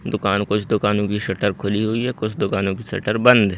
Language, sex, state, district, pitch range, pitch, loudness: Hindi, male, Madhya Pradesh, Katni, 100-110 Hz, 105 Hz, -20 LUFS